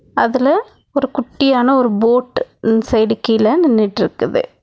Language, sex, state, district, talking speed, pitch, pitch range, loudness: Tamil, female, Tamil Nadu, Nilgiris, 115 wpm, 255 Hz, 225-285 Hz, -15 LUFS